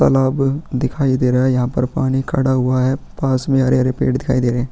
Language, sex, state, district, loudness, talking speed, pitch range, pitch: Hindi, male, Chhattisgarh, Kabirdham, -17 LUFS, 240 wpm, 130-135 Hz, 130 Hz